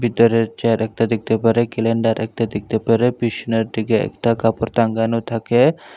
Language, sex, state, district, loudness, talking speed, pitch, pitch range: Bengali, male, Tripura, Unakoti, -18 LUFS, 150 wpm, 115 Hz, 110-115 Hz